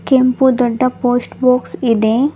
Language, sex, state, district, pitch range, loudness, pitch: Kannada, female, Karnataka, Bangalore, 245-260 Hz, -14 LUFS, 255 Hz